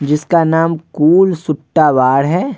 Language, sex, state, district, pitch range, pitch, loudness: Hindi, male, Bihar, Vaishali, 150-170 Hz, 160 Hz, -13 LUFS